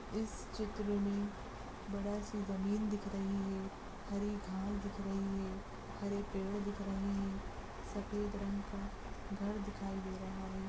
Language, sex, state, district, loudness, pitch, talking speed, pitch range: Hindi, female, Chhattisgarh, Rajnandgaon, -41 LUFS, 200 Hz, 150 wpm, 195-205 Hz